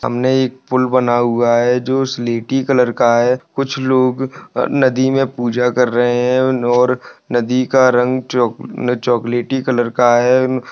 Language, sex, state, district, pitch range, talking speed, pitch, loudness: Hindi, male, Rajasthan, Churu, 120-130 Hz, 155 wpm, 125 Hz, -15 LUFS